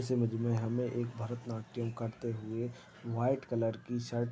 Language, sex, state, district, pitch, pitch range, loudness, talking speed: Hindi, male, Chhattisgarh, Balrampur, 120 Hz, 115-120 Hz, -36 LUFS, 180 wpm